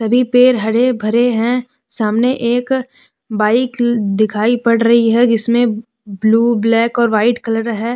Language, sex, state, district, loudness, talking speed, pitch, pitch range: Hindi, female, Jharkhand, Deoghar, -14 LUFS, 145 wpm, 235 Hz, 225-245 Hz